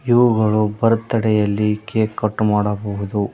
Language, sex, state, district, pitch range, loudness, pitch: Kannada, male, Karnataka, Koppal, 105-115 Hz, -18 LUFS, 105 Hz